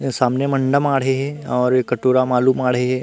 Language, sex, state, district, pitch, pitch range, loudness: Chhattisgarhi, male, Chhattisgarh, Rajnandgaon, 130 Hz, 125-135 Hz, -18 LUFS